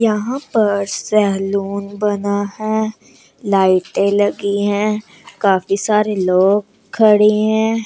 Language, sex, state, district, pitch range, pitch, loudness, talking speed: Hindi, female, Chandigarh, Chandigarh, 200-215 Hz, 205 Hz, -16 LUFS, 100 wpm